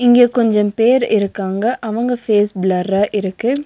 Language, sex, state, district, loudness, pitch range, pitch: Tamil, female, Tamil Nadu, Nilgiris, -16 LUFS, 200-240 Hz, 215 Hz